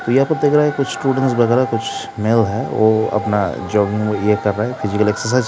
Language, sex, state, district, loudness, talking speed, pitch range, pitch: Hindi, male, Uttar Pradesh, Jalaun, -17 LUFS, 130 wpm, 105-130 Hz, 115 Hz